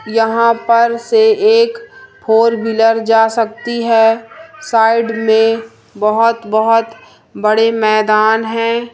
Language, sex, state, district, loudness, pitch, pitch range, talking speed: Hindi, female, Madhya Pradesh, Umaria, -13 LUFS, 225 Hz, 225-235 Hz, 105 wpm